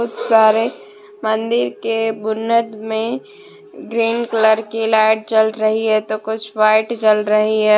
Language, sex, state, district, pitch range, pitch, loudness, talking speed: Hindi, female, Jharkhand, Deoghar, 215-230 Hz, 220 Hz, -17 LUFS, 140 wpm